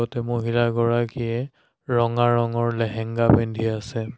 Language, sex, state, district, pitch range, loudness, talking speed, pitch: Assamese, male, Assam, Sonitpur, 115-120 Hz, -22 LUFS, 100 wpm, 115 Hz